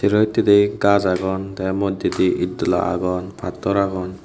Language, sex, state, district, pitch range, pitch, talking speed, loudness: Chakma, male, Tripura, Unakoti, 90-100 Hz, 95 Hz, 155 wpm, -19 LUFS